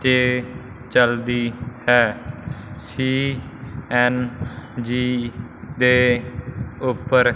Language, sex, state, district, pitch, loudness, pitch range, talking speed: Punjabi, male, Punjab, Fazilka, 125 Hz, -20 LUFS, 120-125 Hz, 50 wpm